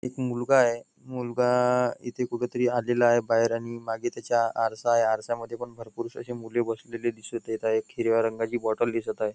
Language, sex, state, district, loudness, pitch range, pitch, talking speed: Marathi, male, Maharashtra, Nagpur, -27 LUFS, 115-120 Hz, 120 Hz, 180 wpm